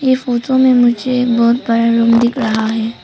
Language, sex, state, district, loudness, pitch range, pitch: Hindi, female, Arunachal Pradesh, Papum Pare, -13 LUFS, 230-250 Hz, 235 Hz